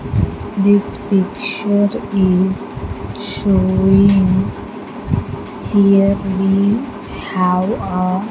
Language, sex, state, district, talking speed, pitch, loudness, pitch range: English, female, Andhra Pradesh, Sri Satya Sai, 60 wpm, 195 Hz, -16 LUFS, 190-205 Hz